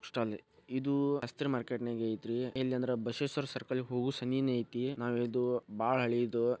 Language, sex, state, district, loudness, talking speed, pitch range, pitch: Kannada, male, Karnataka, Bijapur, -35 LUFS, 120 wpm, 120-130 Hz, 125 Hz